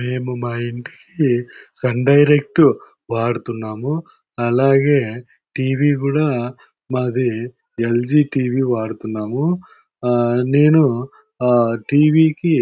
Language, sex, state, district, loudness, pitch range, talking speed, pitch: Telugu, male, Andhra Pradesh, Anantapur, -18 LUFS, 120-145 Hz, 80 wpm, 125 Hz